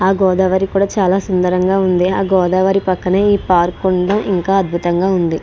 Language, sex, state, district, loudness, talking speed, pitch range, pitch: Telugu, female, Andhra Pradesh, Srikakulam, -14 LUFS, 165 wpm, 180-195 Hz, 190 Hz